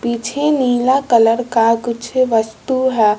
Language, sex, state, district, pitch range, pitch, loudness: Hindi, male, Bihar, West Champaran, 230-260 Hz, 235 Hz, -15 LUFS